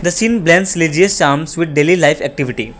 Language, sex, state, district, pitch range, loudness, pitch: English, male, Assam, Kamrup Metropolitan, 145-180 Hz, -13 LUFS, 165 Hz